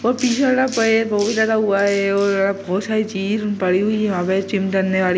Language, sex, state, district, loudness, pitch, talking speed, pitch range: Hindi, male, Bihar, Vaishali, -18 LUFS, 205 Hz, 210 wpm, 195-220 Hz